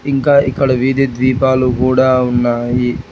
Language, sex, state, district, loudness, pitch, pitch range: Telugu, male, Telangana, Hyderabad, -13 LUFS, 130 Hz, 125-135 Hz